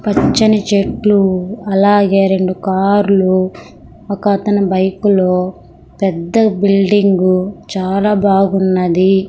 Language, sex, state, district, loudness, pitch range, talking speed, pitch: Telugu, female, Andhra Pradesh, Sri Satya Sai, -13 LUFS, 185-205 Hz, 85 wpm, 195 Hz